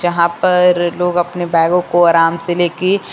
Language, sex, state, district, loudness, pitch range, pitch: Hindi, female, Uttar Pradesh, Lucknow, -14 LUFS, 170-180 Hz, 175 Hz